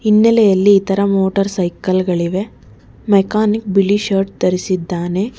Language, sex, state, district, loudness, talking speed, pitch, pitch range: Kannada, female, Karnataka, Bangalore, -15 LUFS, 100 wpm, 195 Hz, 180-205 Hz